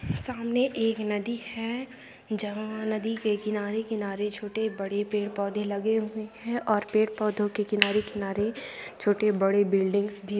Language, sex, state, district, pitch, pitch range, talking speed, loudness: Bhojpuri, female, Uttar Pradesh, Gorakhpur, 210 Hz, 205-220 Hz, 145 wpm, -28 LUFS